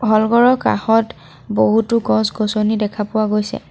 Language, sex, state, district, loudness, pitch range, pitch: Assamese, female, Assam, Sonitpur, -16 LUFS, 210-225 Hz, 215 Hz